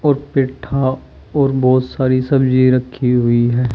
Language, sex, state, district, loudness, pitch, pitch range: Hindi, male, Uttar Pradesh, Shamli, -15 LUFS, 130 Hz, 125-135 Hz